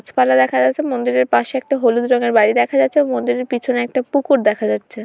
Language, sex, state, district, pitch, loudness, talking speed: Bengali, female, West Bengal, Kolkata, 240 Hz, -16 LUFS, 215 wpm